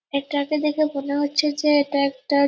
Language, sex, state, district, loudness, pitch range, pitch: Bengali, female, West Bengal, Purulia, -22 LUFS, 280-300 Hz, 285 Hz